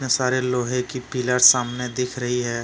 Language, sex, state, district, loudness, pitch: Hindi, male, Jharkhand, Deoghar, -20 LUFS, 125 Hz